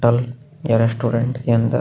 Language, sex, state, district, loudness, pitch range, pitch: Hindi, male, Maharashtra, Aurangabad, -19 LUFS, 115-125 Hz, 120 Hz